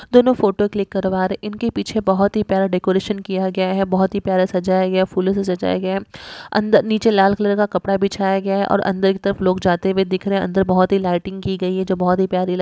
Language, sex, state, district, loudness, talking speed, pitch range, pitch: Hindi, female, Chhattisgarh, Jashpur, -18 LUFS, 245 wpm, 185-200 Hz, 195 Hz